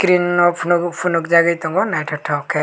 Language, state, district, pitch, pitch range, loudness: Kokborok, Tripura, West Tripura, 170 Hz, 155-175 Hz, -17 LUFS